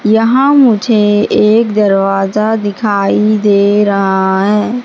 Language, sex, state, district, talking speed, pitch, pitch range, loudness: Hindi, female, Madhya Pradesh, Katni, 100 wpm, 210 Hz, 200-220 Hz, -10 LUFS